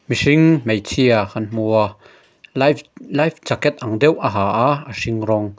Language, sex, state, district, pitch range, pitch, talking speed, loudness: Mizo, male, Mizoram, Aizawl, 110-145 Hz, 120 Hz, 160 wpm, -18 LUFS